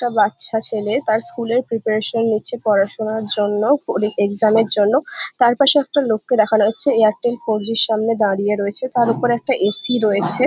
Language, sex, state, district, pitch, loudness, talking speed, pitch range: Bengali, female, West Bengal, Jhargram, 220 Hz, -17 LUFS, 180 wpm, 210-240 Hz